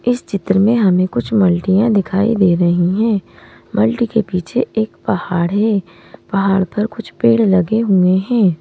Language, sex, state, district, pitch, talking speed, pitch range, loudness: Hindi, male, Madhya Pradesh, Bhopal, 195 Hz, 160 wpm, 185-220 Hz, -15 LUFS